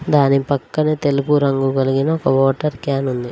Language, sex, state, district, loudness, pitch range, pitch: Telugu, female, Telangana, Mahabubabad, -17 LUFS, 135-150 Hz, 140 Hz